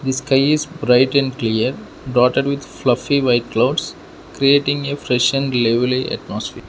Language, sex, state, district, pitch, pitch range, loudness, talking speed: English, male, Arunachal Pradesh, Lower Dibang Valley, 130 Hz, 125-140 Hz, -17 LUFS, 155 wpm